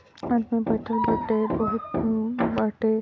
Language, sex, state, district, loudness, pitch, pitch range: Bhojpuri, female, Uttar Pradesh, Ghazipur, -25 LUFS, 225 Hz, 220-235 Hz